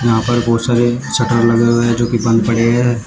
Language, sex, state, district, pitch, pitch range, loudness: Hindi, male, Uttar Pradesh, Shamli, 120 Hz, 115-120 Hz, -14 LUFS